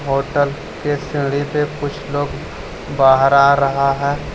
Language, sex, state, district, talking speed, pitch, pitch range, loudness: Hindi, male, Jharkhand, Deoghar, 140 wpm, 140 Hz, 140-145 Hz, -17 LUFS